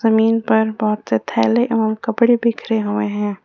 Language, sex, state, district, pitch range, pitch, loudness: Hindi, female, Jharkhand, Ranchi, 210-225 Hz, 220 Hz, -17 LUFS